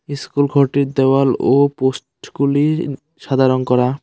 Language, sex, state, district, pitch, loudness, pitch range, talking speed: Bengali, male, West Bengal, Cooch Behar, 140 Hz, -16 LUFS, 130-145 Hz, 120 wpm